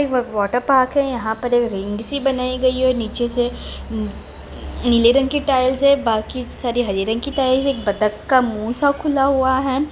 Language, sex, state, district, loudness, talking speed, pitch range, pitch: Hindi, female, Bihar, Saran, -19 LUFS, 185 wpm, 230-270 Hz, 255 Hz